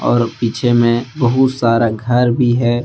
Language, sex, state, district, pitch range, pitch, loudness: Hindi, male, Jharkhand, Deoghar, 115-125 Hz, 120 Hz, -15 LUFS